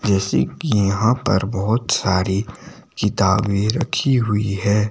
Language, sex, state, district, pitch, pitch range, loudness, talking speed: Hindi, male, Himachal Pradesh, Shimla, 105 Hz, 100-110 Hz, -19 LUFS, 120 wpm